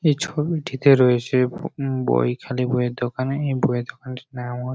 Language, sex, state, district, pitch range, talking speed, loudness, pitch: Bengali, male, West Bengal, Jhargram, 125-135 Hz, 165 wpm, -21 LUFS, 130 Hz